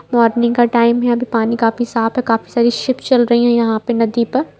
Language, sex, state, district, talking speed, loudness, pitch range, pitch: Hindi, female, Bihar, Saran, 245 wpm, -15 LUFS, 230-240 Hz, 235 Hz